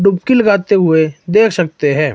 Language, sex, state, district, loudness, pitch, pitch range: Hindi, male, Himachal Pradesh, Shimla, -12 LUFS, 180 Hz, 155-205 Hz